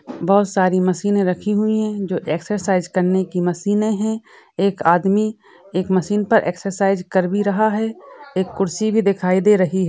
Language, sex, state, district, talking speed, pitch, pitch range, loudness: Hindi, female, Maharashtra, Sindhudurg, 170 wpm, 195 Hz, 185-210 Hz, -19 LUFS